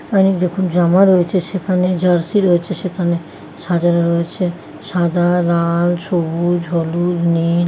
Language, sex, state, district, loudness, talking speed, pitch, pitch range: Bengali, female, West Bengal, Kolkata, -16 LUFS, 115 wpm, 175 Hz, 170-185 Hz